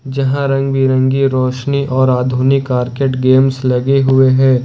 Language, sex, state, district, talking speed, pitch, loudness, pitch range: Hindi, male, Jharkhand, Ranchi, 140 wpm, 130 Hz, -13 LUFS, 130-135 Hz